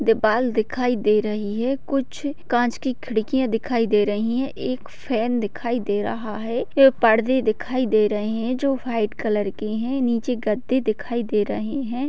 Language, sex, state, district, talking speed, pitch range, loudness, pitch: Hindi, female, Bihar, Bhagalpur, 180 wpm, 215-255 Hz, -22 LUFS, 235 Hz